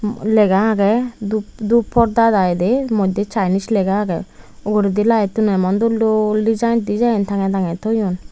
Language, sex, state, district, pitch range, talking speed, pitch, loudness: Chakma, female, Tripura, Unakoti, 200-225 Hz, 160 wpm, 210 Hz, -17 LUFS